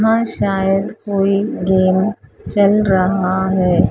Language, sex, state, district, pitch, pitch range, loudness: Hindi, female, Maharashtra, Mumbai Suburban, 195 Hz, 190-205 Hz, -16 LUFS